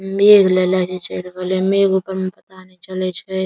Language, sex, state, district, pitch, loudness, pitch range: Maithili, male, Bihar, Saharsa, 185 Hz, -17 LUFS, 185-190 Hz